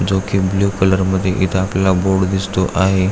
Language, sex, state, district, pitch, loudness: Marathi, male, Maharashtra, Aurangabad, 95 Hz, -16 LUFS